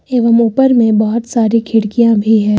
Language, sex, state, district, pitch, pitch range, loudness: Hindi, female, Uttar Pradesh, Lucknow, 230 Hz, 220-235 Hz, -12 LUFS